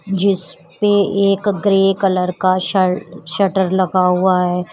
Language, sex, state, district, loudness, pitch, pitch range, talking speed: Hindi, female, Uttar Pradesh, Shamli, -16 LUFS, 190 Hz, 180-200 Hz, 115 wpm